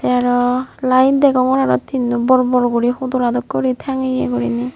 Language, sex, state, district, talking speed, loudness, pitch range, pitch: Chakma, female, Tripura, Unakoti, 175 wpm, -16 LUFS, 240-260 Hz, 250 Hz